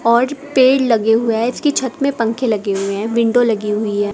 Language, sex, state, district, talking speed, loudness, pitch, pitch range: Hindi, female, Uttar Pradesh, Saharanpur, 215 wpm, -16 LUFS, 230 Hz, 215-255 Hz